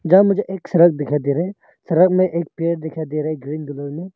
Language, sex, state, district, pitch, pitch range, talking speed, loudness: Hindi, male, Arunachal Pradesh, Longding, 170 Hz, 150-185 Hz, 260 wpm, -19 LUFS